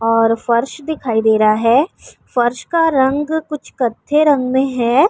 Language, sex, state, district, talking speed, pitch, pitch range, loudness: Urdu, female, Uttar Pradesh, Budaun, 165 wpm, 260 Hz, 230-300 Hz, -16 LUFS